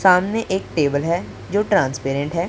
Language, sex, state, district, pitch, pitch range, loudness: Hindi, male, Punjab, Pathankot, 170 Hz, 145-195 Hz, -20 LUFS